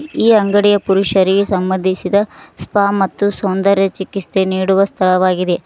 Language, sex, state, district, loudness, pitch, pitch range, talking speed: Kannada, female, Karnataka, Koppal, -14 LUFS, 195 Hz, 190-200 Hz, 105 wpm